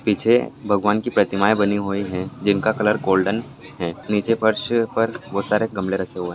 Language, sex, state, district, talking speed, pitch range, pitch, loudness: Hindi, male, Bihar, Saran, 200 wpm, 95-110 Hz, 105 Hz, -21 LUFS